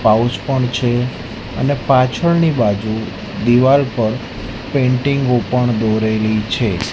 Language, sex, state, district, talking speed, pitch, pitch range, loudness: Gujarati, male, Gujarat, Gandhinagar, 105 wpm, 120 Hz, 110-130 Hz, -16 LUFS